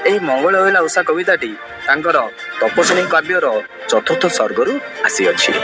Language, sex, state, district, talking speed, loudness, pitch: Odia, male, Odisha, Malkangiri, 115 wpm, -15 LUFS, 180 Hz